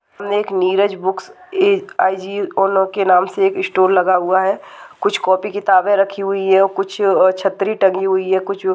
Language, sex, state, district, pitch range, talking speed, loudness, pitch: Hindi, female, Bihar, Saharsa, 190-205 Hz, 170 wpm, -16 LUFS, 195 Hz